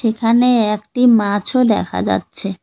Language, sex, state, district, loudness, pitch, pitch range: Bengali, female, West Bengal, Cooch Behar, -15 LUFS, 225 Hz, 205-245 Hz